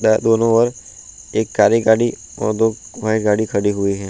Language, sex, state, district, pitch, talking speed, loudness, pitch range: Hindi, male, Uttar Pradesh, Budaun, 110 Hz, 175 wpm, -17 LUFS, 105-115 Hz